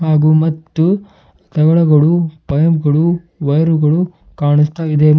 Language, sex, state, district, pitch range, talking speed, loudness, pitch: Kannada, male, Karnataka, Bidar, 150-170 Hz, 105 wpm, -14 LUFS, 160 Hz